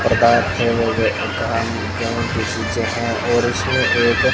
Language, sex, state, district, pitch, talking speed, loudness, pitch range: Hindi, male, Rajasthan, Bikaner, 115 Hz, 70 wpm, -18 LUFS, 110-120 Hz